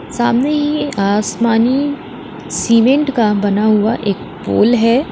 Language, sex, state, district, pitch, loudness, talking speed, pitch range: Hindi, female, Uttar Pradesh, Lalitpur, 230 Hz, -14 LUFS, 115 wpm, 215-270 Hz